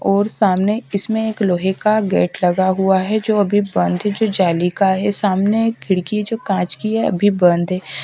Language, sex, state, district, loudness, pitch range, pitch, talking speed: Hindi, female, Haryana, Rohtak, -17 LUFS, 185-215 Hz, 200 Hz, 210 wpm